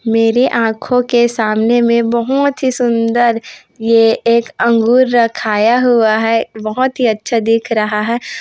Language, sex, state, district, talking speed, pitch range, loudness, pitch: Hindi, female, Chhattisgarh, Korba, 145 wpm, 225-245 Hz, -13 LUFS, 235 Hz